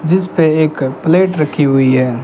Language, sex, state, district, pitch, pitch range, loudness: Hindi, male, Rajasthan, Bikaner, 155 Hz, 135-165 Hz, -13 LUFS